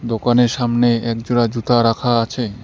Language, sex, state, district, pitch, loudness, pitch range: Bengali, male, West Bengal, Cooch Behar, 120 Hz, -17 LUFS, 115-120 Hz